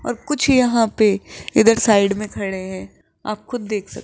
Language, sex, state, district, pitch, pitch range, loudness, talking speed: Hindi, female, Rajasthan, Jaipur, 215 Hz, 200-235 Hz, -18 LUFS, 180 wpm